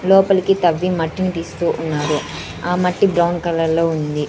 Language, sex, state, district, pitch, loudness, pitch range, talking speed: Telugu, female, Andhra Pradesh, Sri Satya Sai, 170 Hz, -18 LUFS, 160-185 Hz, 155 wpm